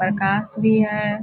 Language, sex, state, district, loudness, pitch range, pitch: Hindi, female, Bihar, Purnia, -19 LUFS, 195-215 Hz, 210 Hz